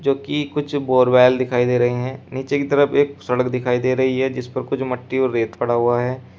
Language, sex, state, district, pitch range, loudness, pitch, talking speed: Hindi, male, Uttar Pradesh, Shamli, 125-140 Hz, -19 LUFS, 130 Hz, 225 wpm